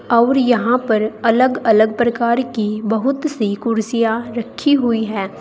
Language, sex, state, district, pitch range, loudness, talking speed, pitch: Hindi, female, Uttar Pradesh, Saharanpur, 220-245 Hz, -17 LUFS, 145 wpm, 230 Hz